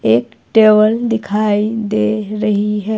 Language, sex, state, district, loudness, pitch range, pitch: Hindi, female, Himachal Pradesh, Shimla, -14 LUFS, 205-215 Hz, 210 Hz